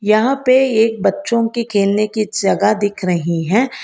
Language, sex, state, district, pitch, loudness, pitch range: Hindi, female, Karnataka, Bangalore, 215 Hz, -16 LUFS, 200-235 Hz